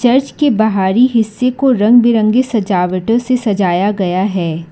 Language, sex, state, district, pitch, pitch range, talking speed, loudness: Hindi, female, Karnataka, Bangalore, 220 Hz, 190-245 Hz, 150 wpm, -13 LUFS